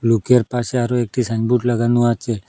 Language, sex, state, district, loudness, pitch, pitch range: Bengali, male, Assam, Hailakandi, -18 LUFS, 120 Hz, 115-125 Hz